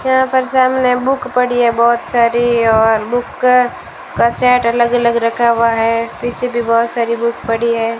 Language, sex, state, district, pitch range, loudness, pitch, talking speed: Hindi, female, Rajasthan, Bikaner, 230-250 Hz, -14 LUFS, 235 Hz, 180 wpm